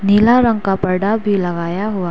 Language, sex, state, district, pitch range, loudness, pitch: Hindi, female, Arunachal Pradesh, Lower Dibang Valley, 185-215 Hz, -16 LUFS, 200 Hz